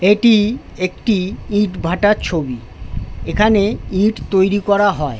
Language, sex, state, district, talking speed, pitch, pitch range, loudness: Bengali, male, West Bengal, Jhargram, 140 wpm, 200 Hz, 170-210 Hz, -16 LUFS